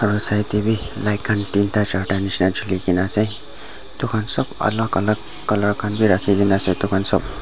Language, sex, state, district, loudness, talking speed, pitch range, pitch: Nagamese, male, Nagaland, Dimapur, -20 LUFS, 210 wpm, 95-105 Hz, 105 Hz